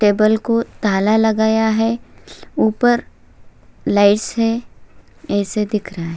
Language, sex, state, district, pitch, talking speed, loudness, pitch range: Hindi, female, Chhattisgarh, Kabirdham, 220 Hz, 115 wpm, -17 LUFS, 205-225 Hz